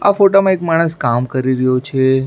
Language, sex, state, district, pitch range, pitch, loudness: Gujarati, male, Maharashtra, Mumbai Suburban, 130-185 Hz, 130 Hz, -14 LUFS